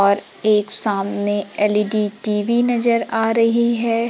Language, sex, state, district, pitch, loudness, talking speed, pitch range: Hindi, female, Madhya Pradesh, Umaria, 215 Hz, -17 LUFS, 130 wpm, 205-230 Hz